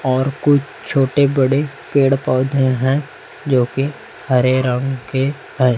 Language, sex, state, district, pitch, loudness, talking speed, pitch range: Hindi, male, Chhattisgarh, Raipur, 135 Hz, -17 LUFS, 135 wpm, 130-140 Hz